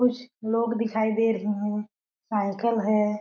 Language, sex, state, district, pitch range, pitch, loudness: Hindi, female, Chhattisgarh, Balrampur, 210-230 Hz, 220 Hz, -26 LUFS